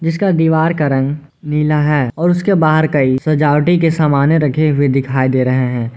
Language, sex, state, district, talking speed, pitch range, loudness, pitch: Hindi, male, Jharkhand, Garhwa, 190 wpm, 135-160 Hz, -14 LUFS, 150 Hz